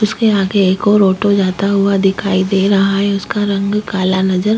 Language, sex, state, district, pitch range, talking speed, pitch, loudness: Hindi, female, Bihar, Vaishali, 190-205 Hz, 210 wpm, 200 Hz, -14 LUFS